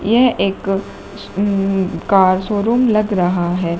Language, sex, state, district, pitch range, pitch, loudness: Hindi, female, Uttar Pradesh, Shamli, 185-210 Hz, 195 Hz, -16 LUFS